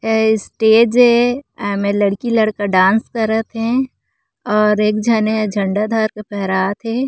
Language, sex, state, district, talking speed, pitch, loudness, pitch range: Chhattisgarhi, female, Chhattisgarh, Korba, 160 wpm, 220 Hz, -16 LUFS, 205-230 Hz